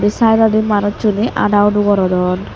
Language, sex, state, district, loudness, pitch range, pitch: Chakma, female, Tripura, Unakoti, -14 LUFS, 205-215 Hz, 205 Hz